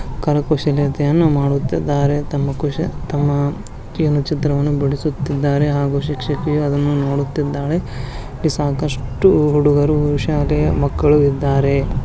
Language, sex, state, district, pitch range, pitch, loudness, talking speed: Kannada, male, Karnataka, Bijapur, 140-150 Hz, 145 Hz, -17 LUFS, 90 wpm